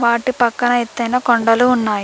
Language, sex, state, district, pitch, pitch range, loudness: Telugu, female, Andhra Pradesh, Krishna, 240 Hz, 230-245 Hz, -16 LUFS